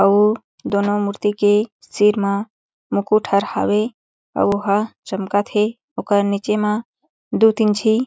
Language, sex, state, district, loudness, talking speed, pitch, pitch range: Chhattisgarhi, female, Chhattisgarh, Jashpur, -19 LUFS, 165 wpm, 210 Hz, 200-215 Hz